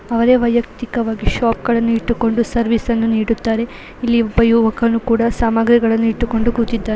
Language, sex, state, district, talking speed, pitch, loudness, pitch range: Kannada, female, Karnataka, Belgaum, 105 wpm, 230 Hz, -16 LUFS, 225-235 Hz